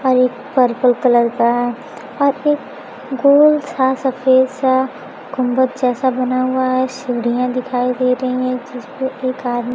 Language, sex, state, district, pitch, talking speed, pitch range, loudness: Hindi, female, Bihar, Kaimur, 255 Hz, 155 wpm, 250-265 Hz, -16 LUFS